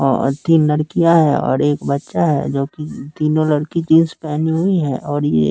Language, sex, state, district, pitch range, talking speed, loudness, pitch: Hindi, male, Bihar, West Champaran, 145-160 Hz, 195 wpm, -16 LUFS, 150 Hz